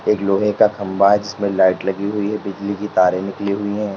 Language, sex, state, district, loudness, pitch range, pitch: Hindi, male, Uttar Pradesh, Lalitpur, -18 LUFS, 100-105 Hz, 100 Hz